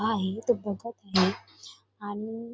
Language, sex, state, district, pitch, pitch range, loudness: Marathi, female, Maharashtra, Sindhudurg, 215 Hz, 200-225 Hz, -29 LUFS